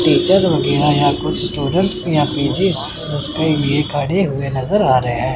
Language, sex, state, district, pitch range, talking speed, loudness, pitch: Hindi, male, Chandigarh, Chandigarh, 140-175 Hz, 145 wpm, -16 LUFS, 150 Hz